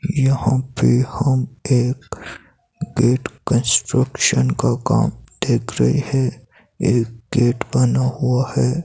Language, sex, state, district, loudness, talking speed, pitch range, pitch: Hindi, male, Himachal Pradesh, Shimla, -18 LUFS, 110 wpm, 115-135 Hz, 125 Hz